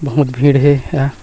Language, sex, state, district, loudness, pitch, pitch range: Chhattisgarhi, male, Chhattisgarh, Rajnandgaon, -13 LUFS, 140 Hz, 135-145 Hz